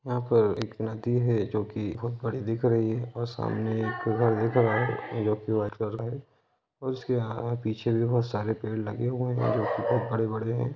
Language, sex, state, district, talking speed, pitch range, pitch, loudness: Hindi, male, Jharkhand, Jamtara, 210 wpm, 110-120 Hz, 115 Hz, -28 LUFS